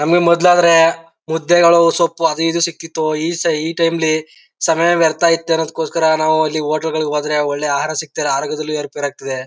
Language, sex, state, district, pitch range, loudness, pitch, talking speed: Kannada, male, Karnataka, Chamarajanagar, 150-165 Hz, -15 LUFS, 160 Hz, 160 wpm